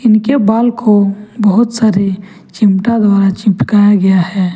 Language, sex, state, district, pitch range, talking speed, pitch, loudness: Hindi, male, Jharkhand, Ranchi, 195-220 Hz, 130 wpm, 205 Hz, -11 LUFS